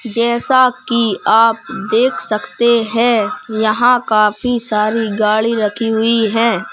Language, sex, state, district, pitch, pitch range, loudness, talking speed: Hindi, male, Madhya Pradesh, Bhopal, 225 Hz, 215-235 Hz, -14 LUFS, 115 wpm